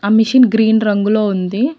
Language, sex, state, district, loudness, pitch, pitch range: Telugu, female, Telangana, Mahabubabad, -13 LUFS, 220 Hz, 205-225 Hz